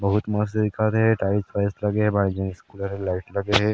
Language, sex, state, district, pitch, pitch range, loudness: Chhattisgarhi, male, Chhattisgarh, Sarguja, 100 Hz, 100-105 Hz, -23 LUFS